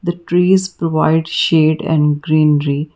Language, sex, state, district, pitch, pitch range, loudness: English, female, Karnataka, Bangalore, 160 Hz, 150-175 Hz, -14 LUFS